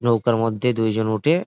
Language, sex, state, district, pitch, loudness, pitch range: Bengali, male, West Bengal, Jalpaiguri, 115 Hz, -21 LUFS, 110-125 Hz